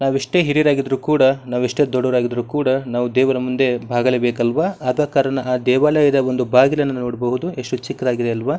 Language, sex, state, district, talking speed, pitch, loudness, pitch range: Kannada, male, Karnataka, Bijapur, 155 wpm, 130 Hz, -18 LUFS, 125-140 Hz